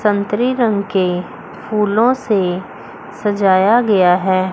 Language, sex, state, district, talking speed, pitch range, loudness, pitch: Hindi, female, Chandigarh, Chandigarh, 105 wpm, 190-215 Hz, -15 LUFS, 205 Hz